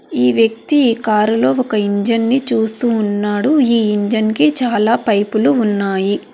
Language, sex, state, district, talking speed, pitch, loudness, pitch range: Telugu, female, Telangana, Hyderabad, 140 wpm, 225 Hz, -15 LUFS, 210-240 Hz